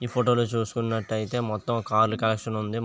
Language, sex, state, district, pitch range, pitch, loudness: Telugu, male, Andhra Pradesh, Visakhapatnam, 110-120 Hz, 115 Hz, -26 LUFS